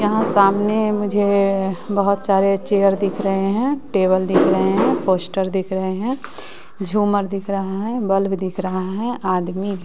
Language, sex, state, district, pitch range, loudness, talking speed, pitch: Hindi, female, Bihar, West Champaran, 190-205 Hz, -19 LUFS, 165 wpm, 195 Hz